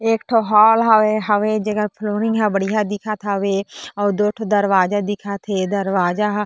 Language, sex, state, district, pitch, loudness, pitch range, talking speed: Chhattisgarhi, female, Chhattisgarh, Korba, 210 Hz, -18 LUFS, 200-215 Hz, 150 wpm